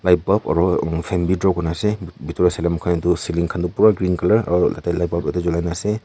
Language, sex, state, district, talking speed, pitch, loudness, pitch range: Nagamese, male, Nagaland, Kohima, 200 wpm, 90 Hz, -19 LUFS, 85-95 Hz